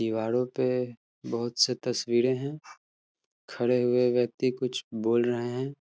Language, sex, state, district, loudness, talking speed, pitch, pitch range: Hindi, male, Bihar, Darbhanga, -28 LUFS, 135 wpm, 125 Hz, 120-125 Hz